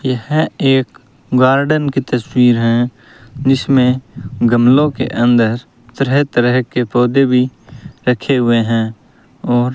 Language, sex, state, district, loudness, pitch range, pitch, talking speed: Hindi, male, Rajasthan, Bikaner, -14 LUFS, 120-135 Hz, 125 Hz, 125 wpm